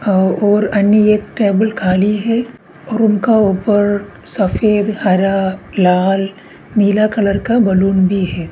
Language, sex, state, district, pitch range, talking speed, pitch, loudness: Hindi, male, Uttarakhand, Tehri Garhwal, 195-215 Hz, 125 wpm, 205 Hz, -14 LUFS